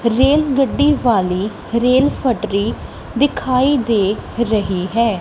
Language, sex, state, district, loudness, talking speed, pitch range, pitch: Punjabi, female, Punjab, Kapurthala, -16 LUFS, 90 wpm, 215-270 Hz, 235 Hz